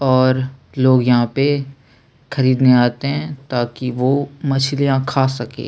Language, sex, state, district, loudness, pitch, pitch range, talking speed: Hindi, male, Chhattisgarh, Sukma, -17 LUFS, 130 Hz, 125-140 Hz, 125 wpm